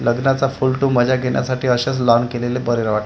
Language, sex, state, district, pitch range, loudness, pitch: Marathi, male, Maharashtra, Gondia, 120-130 Hz, -18 LUFS, 125 Hz